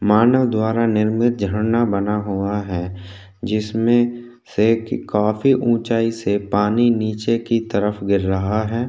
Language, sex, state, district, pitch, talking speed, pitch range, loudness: Hindi, male, Maharashtra, Chandrapur, 110 Hz, 130 wpm, 100-115 Hz, -19 LUFS